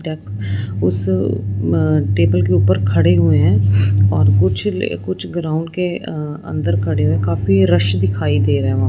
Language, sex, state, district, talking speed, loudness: Hindi, female, Punjab, Fazilka, 170 wpm, -16 LUFS